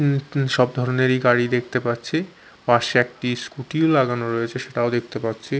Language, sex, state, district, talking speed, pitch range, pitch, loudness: Bengali, male, Chhattisgarh, Raipur, 170 wpm, 120-140 Hz, 125 Hz, -21 LUFS